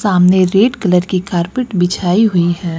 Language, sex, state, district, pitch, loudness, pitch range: Hindi, female, Uttar Pradesh, Lucknow, 180 Hz, -13 LUFS, 175-205 Hz